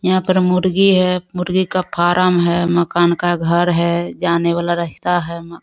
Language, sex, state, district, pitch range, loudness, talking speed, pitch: Hindi, female, Bihar, Kishanganj, 170-185 Hz, -16 LUFS, 190 wpm, 175 Hz